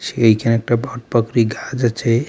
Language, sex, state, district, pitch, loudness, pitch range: Bengali, male, West Bengal, Alipurduar, 115 Hz, -18 LUFS, 115-120 Hz